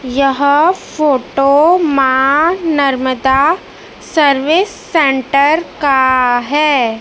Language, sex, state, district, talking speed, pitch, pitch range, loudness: Hindi, male, Madhya Pradesh, Dhar, 70 wpm, 280 Hz, 265-310 Hz, -12 LUFS